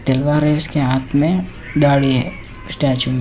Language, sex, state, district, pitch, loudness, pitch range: Hindi, male, Bihar, Darbhanga, 140 Hz, -17 LUFS, 130-150 Hz